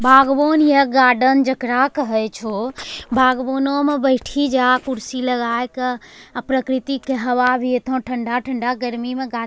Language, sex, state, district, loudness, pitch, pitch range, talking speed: Angika, female, Bihar, Bhagalpur, -18 LUFS, 255 Hz, 245-265 Hz, 150 wpm